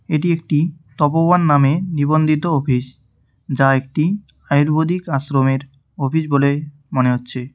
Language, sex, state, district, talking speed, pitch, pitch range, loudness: Bengali, male, West Bengal, Cooch Behar, 110 wpm, 145 Hz, 135-160 Hz, -18 LUFS